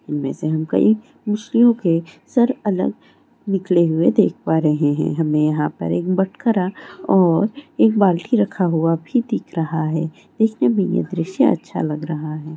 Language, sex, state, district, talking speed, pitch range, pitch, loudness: Hindi, female, Chhattisgarh, Raigarh, 170 wpm, 160-215 Hz, 175 Hz, -19 LUFS